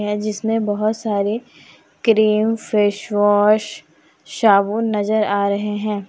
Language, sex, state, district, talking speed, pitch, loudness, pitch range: Hindi, female, Jharkhand, Deoghar, 120 wpm, 210 Hz, -18 LUFS, 205-220 Hz